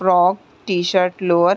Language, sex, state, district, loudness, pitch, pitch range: Hindi, female, Chhattisgarh, Raigarh, -18 LUFS, 180 Hz, 175-185 Hz